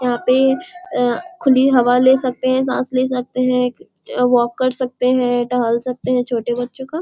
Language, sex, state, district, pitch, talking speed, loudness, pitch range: Hindi, female, Bihar, Muzaffarpur, 255 Hz, 195 wpm, -17 LUFS, 245-260 Hz